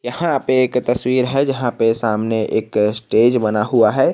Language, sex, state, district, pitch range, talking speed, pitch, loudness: Hindi, male, Jharkhand, Garhwa, 110-130 Hz, 190 wpm, 120 Hz, -17 LUFS